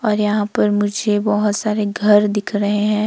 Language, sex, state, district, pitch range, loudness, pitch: Hindi, female, Himachal Pradesh, Shimla, 205-210 Hz, -17 LUFS, 210 Hz